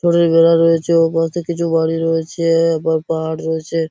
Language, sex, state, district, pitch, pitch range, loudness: Bengali, male, West Bengal, Purulia, 165 Hz, 160-165 Hz, -16 LUFS